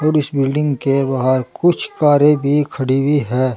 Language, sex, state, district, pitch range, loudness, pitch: Hindi, male, Uttar Pradesh, Saharanpur, 130-150 Hz, -16 LUFS, 140 Hz